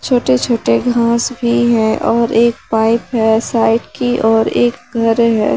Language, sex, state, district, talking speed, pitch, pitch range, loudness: Hindi, female, Jharkhand, Garhwa, 160 wpm, 235 Hz, 225-240 Hz, -14 LUFS